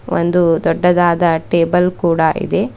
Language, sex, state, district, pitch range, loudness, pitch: Kannada, female, Karnataka, Bidar, 165-180 Hz, -14 LUFS, 170 Hz